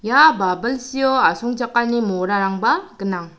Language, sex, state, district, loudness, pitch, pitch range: Garo, female, Meghalaya, South Garo Hills, -18 LUFS, 235 Hz, 195-250 Hz